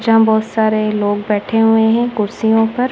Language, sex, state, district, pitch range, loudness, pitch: Hindi, female, Punjab, Kapurthala, 215-225 Hz, -14 LUFS, 220 Hz